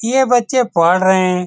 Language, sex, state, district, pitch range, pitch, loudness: Hindi, male, Bihar, Saran, 180-250 Hz, 190 Hz, -14 LUFS